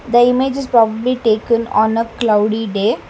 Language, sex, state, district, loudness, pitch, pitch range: English, female, Karnataka, Bangalore, -15 LUFS, 230 Hz, 220-245 Hz